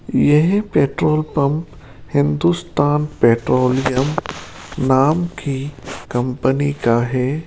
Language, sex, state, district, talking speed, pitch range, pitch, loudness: Hindi, male, Rajasthan, Jaipur, 80 wpm, 130-150 Hz, 140 Hz, -17 LUFS